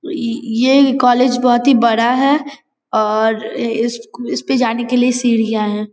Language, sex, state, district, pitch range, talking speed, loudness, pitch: Hindi, female, Bihar, Vaishali, 230-265 Hz, 170 wpm, -15 LUFS, 240 Hz